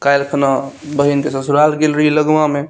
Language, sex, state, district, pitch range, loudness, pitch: Maithili, male, Bihar, Saharsa, 140-150 Hz, -15 LUFS, 145 Hz